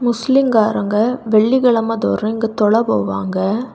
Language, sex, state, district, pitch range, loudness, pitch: Tamil, female, Tamil Nadu, Kanyakumari, 210-240 Hz, -16 LUFS, 225 Hz